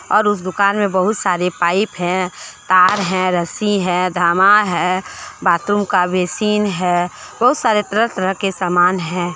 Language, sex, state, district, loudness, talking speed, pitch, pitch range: Hindi, female, Jharkhand, Deoghar, -16 LUFS, 160 wpm, 185 Hz, 180-205 Hz